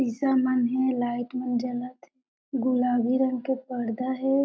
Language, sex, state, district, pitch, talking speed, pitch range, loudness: Chhattisgarhi, female, Chhattisgarh, Jashpur, 255 Hz, 160 wpm, 245-260 Hz, -26 LUFS